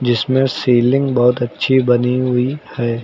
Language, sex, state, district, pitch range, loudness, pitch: Hindi, male, Uttar Pradesh, Lucknow, 120-130 Hz, -15 LUFS, 125 Hz